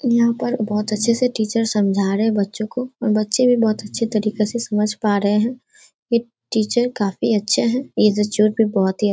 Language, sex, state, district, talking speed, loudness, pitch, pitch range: Hindi, female, Bihar, Darbhanga, 195 wpm, -19 LUFS, 220 Hz, 210-235 Hz